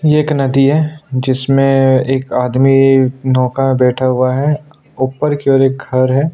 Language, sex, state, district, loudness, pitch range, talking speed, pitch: Hindi, male, Chhattisgarh, Sukma, -13 LUFS, 130-140 Hz, 160 wpm, 135 Hz